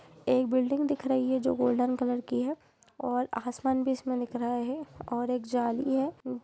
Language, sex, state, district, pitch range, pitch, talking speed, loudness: Hindi, female, Jharkhand, Jamtara, 245-265 Hz, 255 Hz, 205 wpm, -30 LUFS